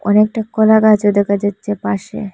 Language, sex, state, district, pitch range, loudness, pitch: Bengali, female, Assam, Hailakandi, 200-215 Hz, -14 LUFS, 205 Hz